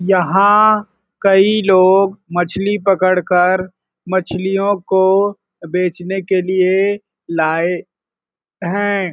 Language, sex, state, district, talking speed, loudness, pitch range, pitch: Hindi, male, Chhattisgarh, Balrampur, 80 wpm, -15 LUFS, 180-200 Hz, 190 Hz